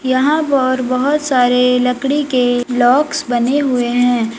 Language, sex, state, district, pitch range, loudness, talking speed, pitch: Hindi, female, Uttar Pradesh, Lalitpur, 245-275 Hz, -14 LUFS, 135 wpm, 255 Hz